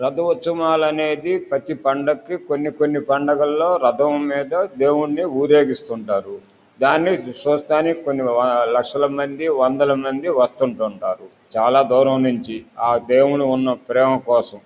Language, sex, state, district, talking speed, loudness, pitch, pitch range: Telugu, male, Andhra Pradesh, Guntur, 115 wpm, -19 LUFS, 140 Hz, 130-155 Hz